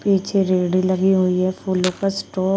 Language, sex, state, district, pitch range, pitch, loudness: Hindi, female, Uttar Pradesh, Shamli, 185-195 Hz, 185 Hz, -19 LUFS